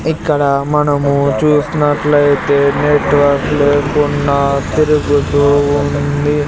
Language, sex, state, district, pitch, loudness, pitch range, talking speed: Telugu, male, Andhra Pradesh, Sri Satya Sai, 145 Hz, -13 LUFS, 140-150 Hz, 65 wpm